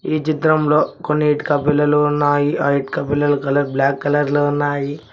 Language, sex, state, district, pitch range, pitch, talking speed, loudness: Telugu, male, Telangana, Mahabubabad, 145-150 Hz, 145 Hz, 165 wpm, -17 LUFS